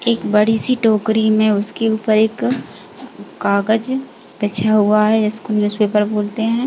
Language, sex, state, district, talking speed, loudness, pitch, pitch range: Hindi, female, Uttar Pradesh, Jalaun, 135 wpm, -16 LUFS, 215 Hz, 210-225 Hz